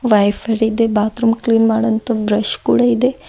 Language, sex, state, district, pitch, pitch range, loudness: Kannada, female, Karnataka, Bidar, 225 Hz, 215-230 Hz, -15 LUFS